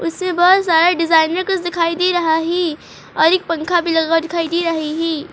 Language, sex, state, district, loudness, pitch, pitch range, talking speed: Hindi, female, Uttar Pradesh, Etah, -16 LUFS, 335 Hz, 325-350 Hz, 200 wpm